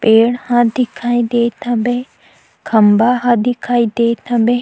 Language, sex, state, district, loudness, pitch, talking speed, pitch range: Chhattisgarhi, female, Chhattisgarh, Sukma, -14 LUFS, 240 Hz, 130 wpm, 235-245 Hz